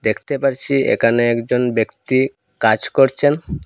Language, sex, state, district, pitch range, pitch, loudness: Bengali, male, Assam, Hailakandi, 115-135 Hz, 125 Hz, -17 LUFS